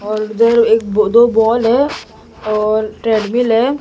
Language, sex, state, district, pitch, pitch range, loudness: Hindi, male, Maharashtra, Mumbai Suburban, 225 Hz, 215-235 Hz, -13 LUFS